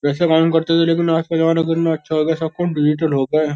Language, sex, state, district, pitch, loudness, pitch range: Hindi, male, Uttar Pradesh, Jyotiba Phule Nagar, 160 Hz, -17 LUFS, 155-165 Hz